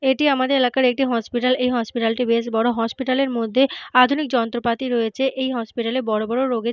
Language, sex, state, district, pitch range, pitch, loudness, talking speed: Bengali, female, Jharkhand, Jamtara, 235-260 Hz, 245 Hz, -20 LUFS, 240 wpm